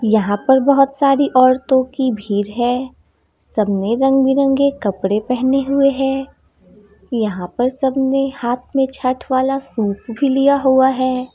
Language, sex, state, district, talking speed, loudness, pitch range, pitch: Hindi, female, Bihar, Gopalganj, 145 wpm, -16 LUFS, 235-270 Hz, 260 Hz